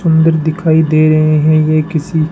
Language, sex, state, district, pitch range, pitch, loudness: Hindi, male, Rajasthan, Bikaner, 155-160 Hz, 155 Hz, -11 LUFS